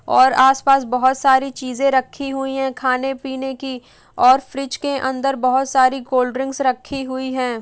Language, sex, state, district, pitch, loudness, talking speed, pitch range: Hindi, female, Uttar Pradesh, Etah, 265 Hz, -18 LUFS, 165 wpm, 255-270 Hz